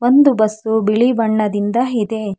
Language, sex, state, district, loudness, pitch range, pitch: Kannada, female, Karnataka, Bangalore, -16 LUFS, 215-240 Hz, 220 Hz